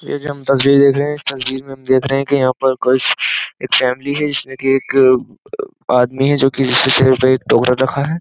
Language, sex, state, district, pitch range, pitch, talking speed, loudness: Hindi, male, Uttar Pradesh, Jyotiba Phule Nagar, 130-140 Hz, 135 Hz, 240 wpm, -14 LUFS